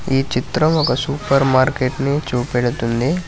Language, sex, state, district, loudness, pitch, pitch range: Telugu, male, Telangana, Hyderabad, -18 LUFS, 135 Hz, 125-145 Hz